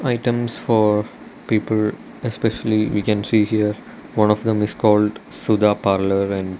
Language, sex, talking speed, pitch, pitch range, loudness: English, male, 155 wpm, 105 Hz, 105-110 Hz, -19 LUFS